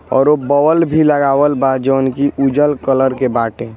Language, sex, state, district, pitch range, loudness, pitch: Hindi, male, Bihar, East Champaran, 130-145 Hz, -13 LUFS, 135 Hz